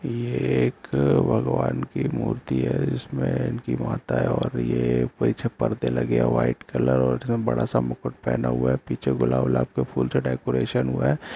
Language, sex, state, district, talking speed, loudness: Hindi, male, Jharkhand, Sahebganj, 185 wpm, -24 LUFS